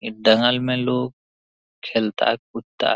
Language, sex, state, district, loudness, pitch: Hindi, male, Jharkhand, Jamtara, -21 LUFS, 110 Hz